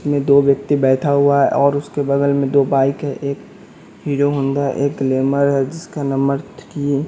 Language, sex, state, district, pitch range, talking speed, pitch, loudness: Hindi, male, Bihar, West Champaran, 140-145 Hz, 205 wpm, 140 Hz, -17 LUFS